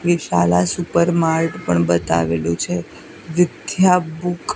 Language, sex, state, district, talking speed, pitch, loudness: Gujarati, female, Gujarat, Gandhinagar, 120 wpm, 160 Hz, -18 LUFS